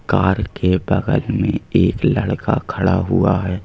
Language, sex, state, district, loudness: Hindi, male, Madhya Pradesh, Bhopal, -18 LUFS